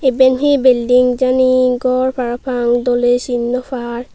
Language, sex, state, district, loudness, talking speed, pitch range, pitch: Chakma, female, Tripura, Unakoti, -14 LUFS, 160 wpm, 245-255 Hz, 250 Hz